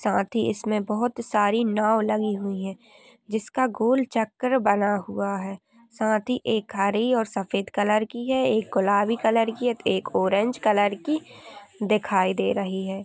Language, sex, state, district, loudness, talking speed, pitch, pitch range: Hindi, female, Uttar Pradesh, Jyotiba Phule Nagar, -24 LUFS, 175 wpm, 215 Hz, 200-235 Hz